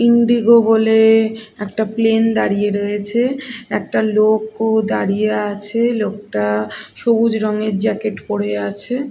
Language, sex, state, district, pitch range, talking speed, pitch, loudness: Bengali, female, Odisha, Khordha, 205-230 Hz, 110 wpm, 220 Hz, -17 LUFS